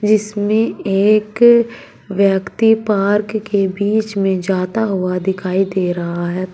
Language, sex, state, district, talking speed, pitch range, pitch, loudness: Hindi, female, Uttar Pradesh, Shamli, 120 wpm, 190-215 Hz, 200 Hz, -16 LUFS